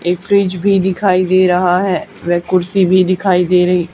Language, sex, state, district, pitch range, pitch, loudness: Hindi, female, Haryana, Charkhi Dadri, 180-190 Hz, 185 Hz, -13 LUFS